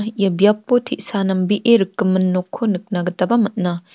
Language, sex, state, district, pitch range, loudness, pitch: Garo, female, Meghalaya, North Garo Hills, 185-220 Hz, -18 LUFS, 200 Hz